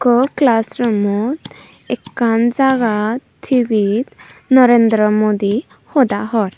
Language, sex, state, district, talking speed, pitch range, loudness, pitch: Chakma, female, Tripura, Unakoti, 90 wpm, 215-255 Hz, -15 LUFS, 230 Hz